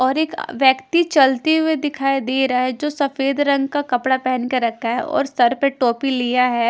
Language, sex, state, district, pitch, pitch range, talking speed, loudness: Hindi, female, Punjab, Kapurthala, 265 Hz, 250-290 Hz, 225 wpm, -18 LUFS